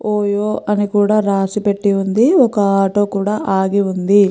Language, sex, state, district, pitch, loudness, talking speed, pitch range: Telugu, female, Andhra Pradesh, Chittoor, 205 Hz, -15 LUFS, 155 wpm, 195-210 Hz